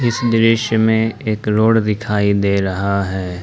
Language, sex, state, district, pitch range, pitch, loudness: Hindi, male, Jharkhand, Ranchi, 100-110 Hz, 105 Hz, -16 LUFS